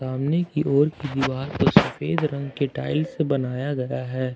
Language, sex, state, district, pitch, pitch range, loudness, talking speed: Hindi, male, Jharkhand, Ranchi, 140 Hz, 130-150 Hz, -23 LUFS, 195 wpm